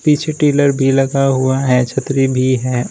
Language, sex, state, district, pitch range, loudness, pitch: Hindi, male, Uttar Pradesh, Shamli, 130-140 Hz, -14 LUFS, 135 Hz